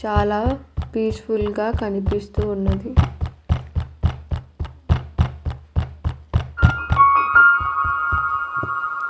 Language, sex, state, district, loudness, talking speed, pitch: Telugu, female, Andhra Pradesh, Annamaya, -20 LUFS, 40 wpm, 140 Hz